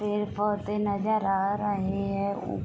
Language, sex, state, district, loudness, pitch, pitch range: Hindi, female, Jharkhand, Sahebganj, -28 LUFS, 200 Hz, 195-210 Hz